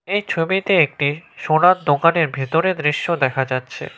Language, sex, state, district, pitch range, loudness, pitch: Bengali, male, West Bengal, Cooch Behar, 145-180 Hz, -18 LUFS, 165 Hz